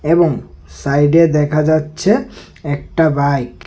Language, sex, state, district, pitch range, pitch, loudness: Bengali, male, Tripura, West Tripura, 140-165 Hz, 150 Hz, -15 LUFS